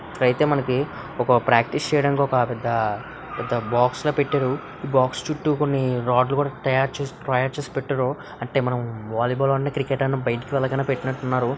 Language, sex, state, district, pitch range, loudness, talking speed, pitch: Telugu, male, Andhra Pradesh, Visakhapatnam, 125-140 Hz, -23 LUFS, 160 wpm, 130 Hz